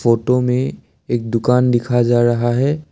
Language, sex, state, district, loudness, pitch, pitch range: Hindi, male, Assam, Sonitpur, -17 LUFS, 120 Hz, 120-125 Hz